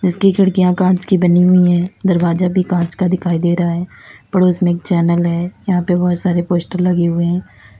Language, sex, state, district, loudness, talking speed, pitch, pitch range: Hindi, female, Uttar Pradesh, Lalitpur, -15 LUFS, 215 wpm, 180 Hz, 175-185 Hz